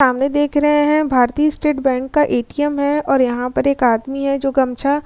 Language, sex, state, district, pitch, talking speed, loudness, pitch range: Hindi, female, Bihar, Vaishali, 275 Hz, 225 wpm, -17 LUFS, 260-295 Hz